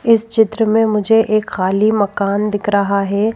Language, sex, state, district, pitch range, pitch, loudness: Hindi, female, Madhya Pradesh, Bhopal, 200-220 Hz, 215 Hz, -15 LUFS